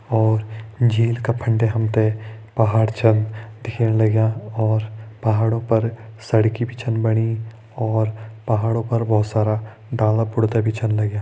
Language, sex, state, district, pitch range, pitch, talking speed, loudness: Hindi, male, Uttarakhand, Tehri Garhwal, 110-115 Hz, 110 Hz, 150 wpm, -20 LUFS